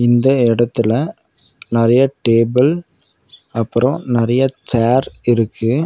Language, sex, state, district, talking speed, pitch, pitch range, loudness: Tamil, male, Tamil Nadu, Nilgiris, 80 wpm, 120 Hz, 115-130 Hz, -15 LUFS